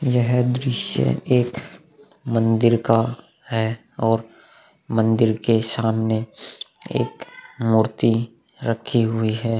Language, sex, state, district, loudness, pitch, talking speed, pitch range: Hindi, male, Uttar Pradesh, Muzaffarnagar, -21 LUFS, 115 Hz, 95 wpm, 110-120 Hz